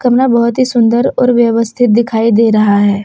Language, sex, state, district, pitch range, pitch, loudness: Hindi, female, Jharkhand, Deoghar, 225-245 Hz, 235 Hz, -11 LUFS